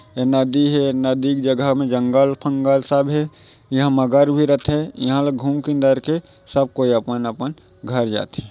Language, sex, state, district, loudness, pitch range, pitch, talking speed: Chhattisgarhi, male, Chhattisgarh, Raigarh, -19 LUFS, 130-145 Hz, 135 Hz, 185 wpm